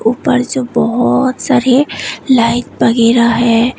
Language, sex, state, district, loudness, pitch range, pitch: Hindi, female, Tripura, West Tripura, -12 LUFS, 230-255 Hz, 240 Hz